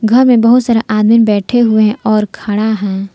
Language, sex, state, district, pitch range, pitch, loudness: Hindi, female, Jharkhand, Palamu, 210-230 Hz, 220 Hz, -11 LUFS